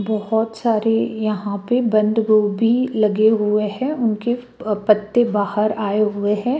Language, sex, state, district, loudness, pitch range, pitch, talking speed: Hindi, female, Chhattisgarh, Raipur, -19 LUFS, 210-230 Hz, 215 Hz, 145 wpm